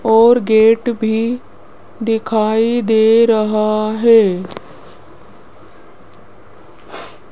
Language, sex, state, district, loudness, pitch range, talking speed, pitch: Hindi, female, Rajasthan, Jaipur, -14 LUFS, 215-230 Hz, 55 wpm, 225 Hz